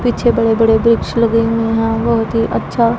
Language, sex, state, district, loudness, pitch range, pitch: Hindi, female, Punjab, Pathankot, -14 LUFS, 225-235 Hz, 230 Hz